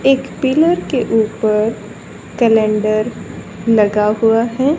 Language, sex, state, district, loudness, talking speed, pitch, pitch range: Hindi, female, Haryana, Charkhi Dadri, -15 LUFS, 100 wpm, 225 Hz, 215-255 Hz